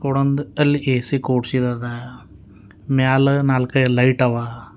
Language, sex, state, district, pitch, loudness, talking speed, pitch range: Kannada, male, Karnataka, Bidar, 125 Hz, -18 LUFS, 115 wpm, 120-135 Hz